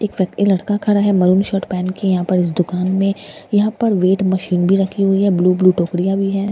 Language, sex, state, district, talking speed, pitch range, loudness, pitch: Hindi, female, Bihar, Katihar, 260 wpm, 185-200 Hz, -16 LUFS, 190 Hz